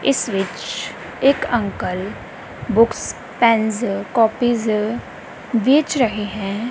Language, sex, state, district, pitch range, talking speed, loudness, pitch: Punjabi, female, Punjab, Kapurthala, 210-245 Hz, 90 wpm, -19 LUFS, 230 Hz